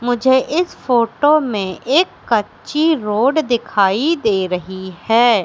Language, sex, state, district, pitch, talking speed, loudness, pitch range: Hindi, female, Madhya Pradesh, Katni, 240 Hz, 120 wpm, -16 LUFS, 205-295 Hz